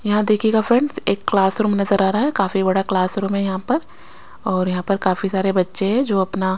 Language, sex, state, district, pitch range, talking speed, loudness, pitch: Hindi, female, Chandigarh, Chandigarh, 190-215 Hz, 230 wpm, -19 LUFS, 195 Hz